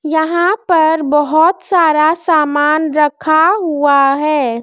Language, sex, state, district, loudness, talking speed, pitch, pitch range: Hindi, female, Madhya Pradesh, Dhar, -12 LUFS, 105 wpm, 315 Hz, 295-330 Hz